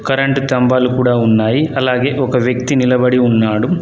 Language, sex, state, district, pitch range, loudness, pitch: Telugu, male, Telangana, Adilabad, 125-135 Hz, -14 LUFS, 125 Hz